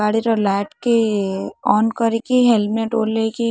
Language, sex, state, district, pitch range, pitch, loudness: Odia, female, Odisha, Khordha, 210-230 Hz, 225 Hz, -18 LUFS